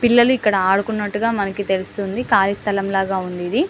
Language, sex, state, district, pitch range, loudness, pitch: Telugu, female, Telangana, Karimnagar, 195-230 Hz, -19 LUFS, 200 Hz